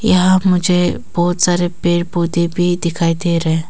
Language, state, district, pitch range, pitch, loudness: Hindi, Arunachal Pradesh, Papum Pare, 170-180 Hz, 175 Hz, -15 LUFS